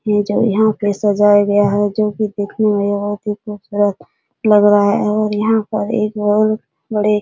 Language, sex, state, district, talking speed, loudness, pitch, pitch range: Hindi, female, Bihar, Supaul, 200 wpm, -16 LUFS, 210 Hz, 205-215 Hz